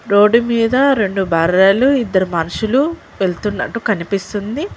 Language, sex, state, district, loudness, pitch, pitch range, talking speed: Telugu, female, Telangana, Mahabubabad, -15 LUFS, 210 Hz, 190-240 Hz, 100 wpm